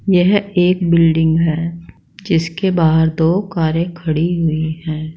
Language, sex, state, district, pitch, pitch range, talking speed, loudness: Hindi, female, Uttar Pradesh, Saharanpur, 165 Hz, 160-180 Hz, 130 wpm, -16 LUFS